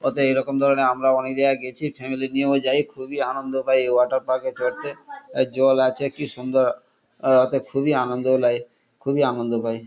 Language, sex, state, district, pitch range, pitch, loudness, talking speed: Bengali, male, West Bengal, Kolkata, 130-140 Hz, 130 Hz, -22 LUFS, 200 wpm